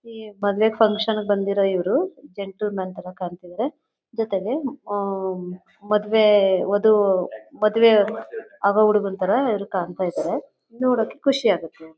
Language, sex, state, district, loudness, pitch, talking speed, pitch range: Kannada, female, Karnataka, Chamarajanagar, -21 LUFS, 205 Hz, 100 wpm, 190-220 Hz